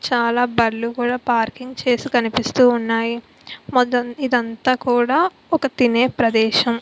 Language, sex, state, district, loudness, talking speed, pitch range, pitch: Telugu, female, Andhra Pradesh, Visakhapatnam, -18 LUFS, 105 wpm, 235-255 Hz, 245 Hz